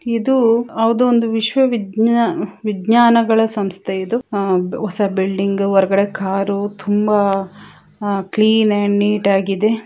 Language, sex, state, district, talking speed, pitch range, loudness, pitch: Kannada, female, Karnataka, Chamarajanagar, 95 wpm, 195-225 Hz, -16 LUFS, 205 Hz